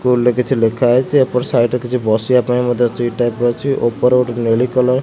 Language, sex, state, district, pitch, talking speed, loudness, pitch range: Odia, male, Odisha, Khordha, 125 Hz, 240 wpm, -15 LUFS, 120-125 Hz